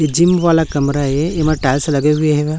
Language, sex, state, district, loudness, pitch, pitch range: Hindi, male, Chhattisgarh, Raipur, -15 LUFS, 150 Hz, 145-160 Hz